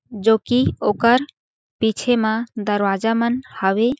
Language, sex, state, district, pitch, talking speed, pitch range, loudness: Chhattisgarhi, female, Chhattisgarh, Jashpur, 225 Hz, 120 wpm, 215-245 Hz, -19 LUFS